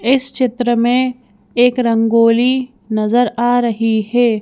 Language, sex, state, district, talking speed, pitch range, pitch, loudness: Hindi, female, Madhya Pradesh, Bhopal, 120 wpm, 225-250 Hz, 240 Hz, -15 LUFS